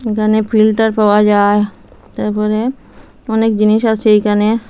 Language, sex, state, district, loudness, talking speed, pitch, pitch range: Bengali, female, Assam, Hailakandi, -13 LUFS, 115 wpm, 215 Hz, 210-220 Hz